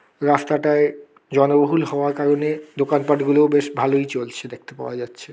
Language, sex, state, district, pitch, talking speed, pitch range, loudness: Bengali, male, West Bengal, Kolkata, 145 Hz, 135 wpm, 140-150 Hz, -19 LUFS